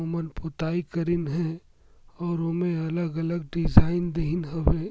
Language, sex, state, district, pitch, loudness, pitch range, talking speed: Surgujia, male, Chhattisgarh, Sarguja, 170 Hz, -27 LUFS, 165-170 Hz, 160 wpm